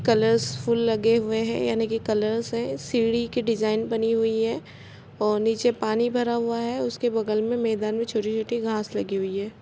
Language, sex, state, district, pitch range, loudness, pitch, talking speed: Hindi, female, Chhattisgarh, Kabirdham, 215-230 Hz, -25 LUFS, 225 Hz, 195 wpm